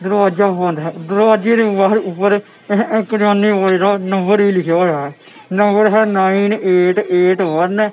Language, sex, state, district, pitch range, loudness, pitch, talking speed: Punjabi, male, Punjab, Kapurthala, 185-210 Hz, -14 LUFS, 200 Hz, 180 wpm